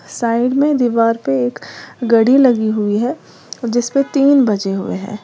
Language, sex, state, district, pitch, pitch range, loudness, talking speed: Hindi, female, Uttar Pradesh, Lalitpur, 235 Hz, 210-260 Hz, -15 LUFS, 160 wpm